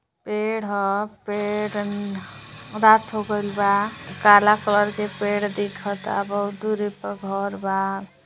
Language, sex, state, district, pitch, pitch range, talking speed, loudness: Bhojpuri, female, Uttar Pradesh, Deoria, 205 Hz, 195-210 Hz, 140 wpm, -22 LUFS